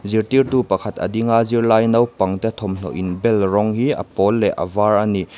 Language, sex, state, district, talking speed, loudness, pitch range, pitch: Mizo, male, Mizoram, Aizawl, 210 wpm, -18 LUFS, 95-115 Hz, 105 Hz